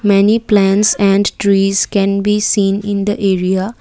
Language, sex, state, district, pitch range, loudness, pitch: English, female, Assam, Kamrup Metropolitan, 195-205 Hz, -13 LUFS, 200 Hz